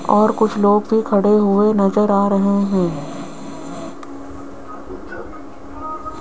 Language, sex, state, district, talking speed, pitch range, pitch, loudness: Hindi, female, Rajasthan, Jaipur, 95 wpm, 200-220 Hz, 205 Hz, -16 LUFS